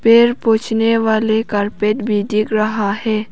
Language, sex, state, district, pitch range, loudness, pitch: Hindi, female, Arunachal Pradesh, Papum Pare, 215-225 Hz, -16 LUFS, 220 Hz